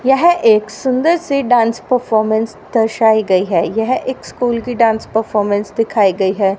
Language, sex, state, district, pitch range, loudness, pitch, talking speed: Hindi, female, Haryana, Rohtak, 210-250 Hz, -15 LUFS, 225 Hz, 165 wpm